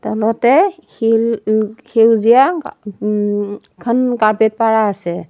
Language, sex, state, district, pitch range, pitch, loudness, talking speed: Assamese, female, Assam, Sonitpur, 210-240 Hz, 225 Hz, -15 LUFS, 115 wpm